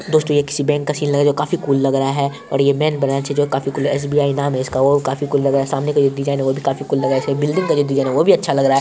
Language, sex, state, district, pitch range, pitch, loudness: Hindi, male, Bihar, Purnia, 135-145 Hz, 140 Hz, -17 LUFS